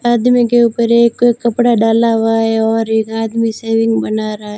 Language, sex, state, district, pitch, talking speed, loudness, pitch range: Hindi, female, Rajasthan, Barmer, 225 Hz, 185 wpm, -13 LUFS, 225-235 Hz